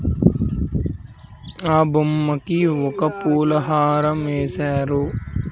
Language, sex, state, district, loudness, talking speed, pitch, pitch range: Telugu, male, Andhra Pradesh, Sri Satya Sai, -20 LUFS, 65 wpm, 150 Hz, 140-155 Hz